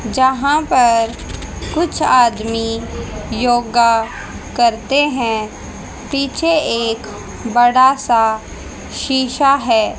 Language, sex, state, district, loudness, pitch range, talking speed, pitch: Hindi, female, Haryana, Jhajjar, -15 LUFS, 225-270 Hz, 80 wpm, 240 Hz